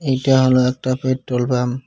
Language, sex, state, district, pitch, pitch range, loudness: Bengali, male, West Bengal, Cooch Behar, 130 Hz, 125-130 Hz, -17 LUFS